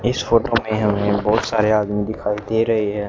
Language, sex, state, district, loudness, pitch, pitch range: Hindi, male, Haryana, Charkhi Dadri, -19 LUFS, 110 Hz, 105-115 Hz